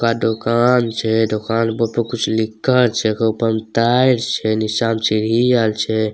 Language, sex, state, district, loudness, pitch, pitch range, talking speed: Maithili, male, Bihar, Samastipur, -17 LUFS, 115 Hz, 110-115 Hz, 185 wpm